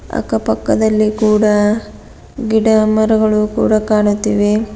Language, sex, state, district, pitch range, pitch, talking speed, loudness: Kannada, female, Karnataka, Bidar, 210-220 Hz, 215 Hz, 90 wpm, -14 LUFS